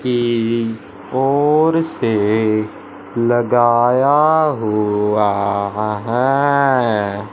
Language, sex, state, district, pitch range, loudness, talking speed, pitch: Hindi, male, Punjab, Fazilka, 105-135 Hz, -16 LUFS, 75 wpm, 120 Hz